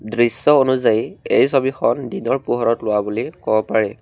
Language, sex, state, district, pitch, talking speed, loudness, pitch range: Assamese, male, Assam, Kamrup Metropolitan, 115 Hz, 150 wpm, -18 LUFS, 110-130 Hz